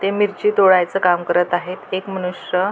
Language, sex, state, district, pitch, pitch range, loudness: Marathi, female, Maharashtra, Pune, 185 Hz, 180-195 Hz, -18 LUFS